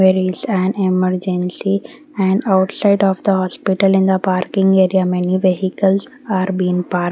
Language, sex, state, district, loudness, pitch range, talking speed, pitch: English, female, Haryana, Rohtak, -16 LUFS, 185-195 Hz, 150 wpm, 190 Hz